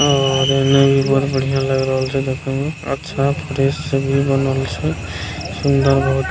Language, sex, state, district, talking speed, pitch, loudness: Maithili, male, Bihar, Begusarai, 180 wpm, 135 Hz, -17 LUFS